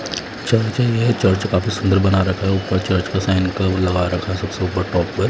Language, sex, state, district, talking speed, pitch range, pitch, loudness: Hindi, male, Punjab, Fazilka, 225 wpm, 95-105 Hz, 95 Hz, -19 LUFS